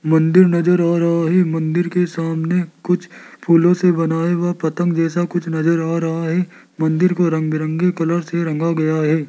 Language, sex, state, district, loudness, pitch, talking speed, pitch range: Hindi, male, Rajasthan, Jaipur, -17 LUFS, 170 Hz, 180 wpm, 160-175 Hz